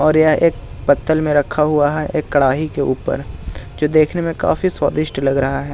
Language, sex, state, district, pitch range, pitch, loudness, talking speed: Hindi, male, Bihar, Jahanabad, 140-155 Hz, 150 Hz, -17 LUFS, 210 wpm